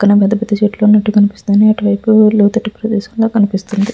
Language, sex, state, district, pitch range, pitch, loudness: Telugu, female, Andhra Pradesh, Visakhapatnam, 205-215 Hz, 210 Hz, -12 LUFS